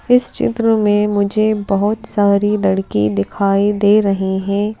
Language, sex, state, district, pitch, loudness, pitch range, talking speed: Hindi, female, Madhya Pradesh, Bhopal, 205 Hz, -15 LUFS, 195-215 Hz, 140 wpm